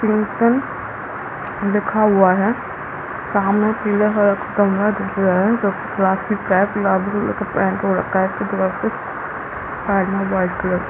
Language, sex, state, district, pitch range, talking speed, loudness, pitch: Hindi, female, Chhattisgarh, Balrampur, 190-210 Hz, 170 wpm, -19 LUFS, 200 Hz